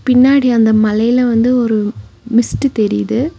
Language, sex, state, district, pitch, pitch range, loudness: Tamil, female, Tamil Nadu, Nilgiris, 230 Hz, 215-250 Hz, -13 LUFS